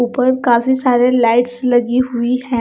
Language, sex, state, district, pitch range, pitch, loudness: Hindi, female, Punjab, Kapurthala, 240-255 Hz, 245 Hz, -14 LUFS